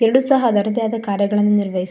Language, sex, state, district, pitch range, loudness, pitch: Kannada, female, Karnataka, Shimoga, 200-230 Hz, -17 LUFS, 210 Hz